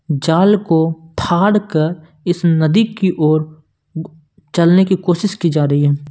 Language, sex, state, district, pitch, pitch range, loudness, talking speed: Hindi, male, Punjab, Kapurthala, 165 Hz, 155-185 Hz, -15 LUFS, 145 wpm